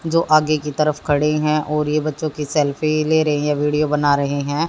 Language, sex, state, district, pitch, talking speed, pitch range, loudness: Hindi, female, Haryana, Jhajjar, 150 Hz, 230 wpm, 150-155 Hz, -18 LUFS